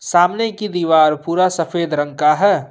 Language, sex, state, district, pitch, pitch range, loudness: Hindi, male, Jharkhand, Ranchi, 170 Hz, 155-185 Hz, -16 LUFS